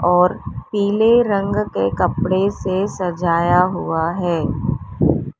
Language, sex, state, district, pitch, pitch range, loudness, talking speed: Hindi, female, Uttar Pradesh, Lalitpur, 180 Hz, 175-200 Hz, -18 LUFS, 100 wpm